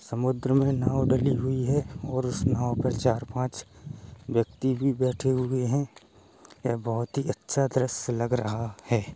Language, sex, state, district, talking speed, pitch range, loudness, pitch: Hindi, male, Uttar Pradesh, Hamirpur, 155 wpm, 120-130 Hz, -27 LUFS, 125 Hz